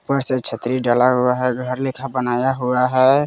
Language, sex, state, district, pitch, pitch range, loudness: Hindi, male, Bihar, West Champaran, 125 Hz, 125-135 Hz, -18 LUFS